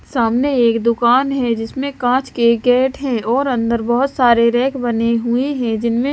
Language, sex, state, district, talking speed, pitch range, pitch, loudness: Hindi, female, Himachal Pradesh, Shimla, 175 wpm, 235-265 Hz, 240 Hz, -16 LUFS